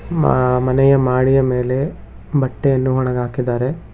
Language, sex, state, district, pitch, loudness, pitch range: Kannada, male, Karnataka, Bangalore, 130 Hz, -17 LUFS, 125-135 Hz